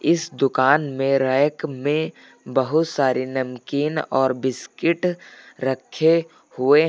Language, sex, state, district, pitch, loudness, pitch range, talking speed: Hindi, male, Uttar Pradesh, Lucknow, 140 Hz, -21 LUFS, 130-160 Hz, 115 wpm